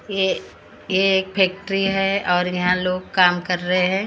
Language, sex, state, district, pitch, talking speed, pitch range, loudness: Hindi, female, Maharashtra, Gondia, 185 Hz, 175 wpm, 180-195 Hz, -20 LUFS